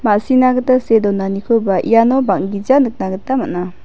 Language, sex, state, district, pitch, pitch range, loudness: Garo, female, Meghalaya, West Garo Hills, 225 Hz, 195-255 Hz, -15 LUFS